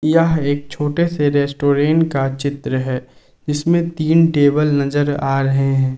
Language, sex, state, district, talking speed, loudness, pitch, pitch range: Hindi, male, Jharkhand, Palamu, 150 wpm, -17 LUFS, 145 Hz, 135-155 Hz